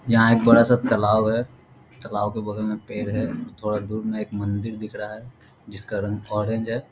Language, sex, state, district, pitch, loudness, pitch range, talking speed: Hindi, male, Bihar, Darbhanga, 110 Hz, -23 LUFS, 105-115 Hz, 200 wpm